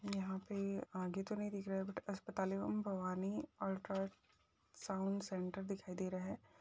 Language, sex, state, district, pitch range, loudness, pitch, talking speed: Hindi, female, Uttar Pradesh, Jyotiba Phule Nagar, 190-200 Hz, -43 LUFS, 195 Hz, 165 wpm